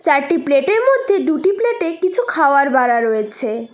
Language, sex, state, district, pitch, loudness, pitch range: Bengali, female, West Bengal, Cooch Behar, 315 Hz, -16 LUFS, 260-395 Hz